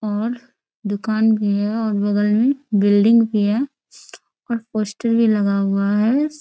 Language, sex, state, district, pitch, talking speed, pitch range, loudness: Hindi, female, Bihar, Bhagalpur, 215 Hz, 170 wpm, 205-230 Hz, -18 LUFS